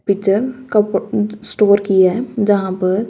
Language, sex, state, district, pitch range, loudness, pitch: Hindi, female, Haryana, Rohtak, 195-215 Hz, -16 LUFS, 205 Hz